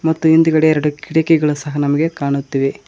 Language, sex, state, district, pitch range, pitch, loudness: Kannada, male, Karnataka, Koppal, 145-160 Hz, 150 Hz, -15 LUFS